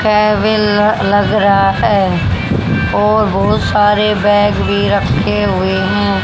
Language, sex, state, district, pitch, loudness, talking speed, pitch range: Hindi, female, Haryana, Charkhi Dadri, 205 Hz, -12 LUFS, 105 wpm, 190-210 Hz